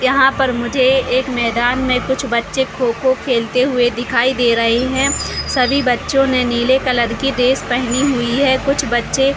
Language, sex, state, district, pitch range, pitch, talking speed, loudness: Hindi, female, Chhattisgarh, Raigarh, 240-265 Hz, 255 Hz, 175 wpm, -15 LUFS